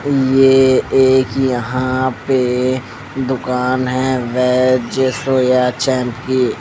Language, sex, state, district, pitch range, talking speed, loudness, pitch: Hindi, male, Punjab, Pathankot, 125-130 Hz, 100 wpm, -15 LUFS, 130 Hz